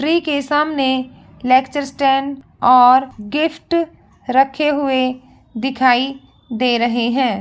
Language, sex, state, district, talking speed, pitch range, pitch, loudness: Hindi, female, Bihar, Begusarai, 105 wpm, 255-285 Hz, 265 Hz, -16 LUFS